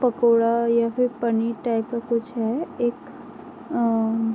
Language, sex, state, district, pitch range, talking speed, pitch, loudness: Hindi, female, Uttar Pradesh, Varanasi, 230-240 Hz, 150 wpm, 235 Hz, -23 LUFS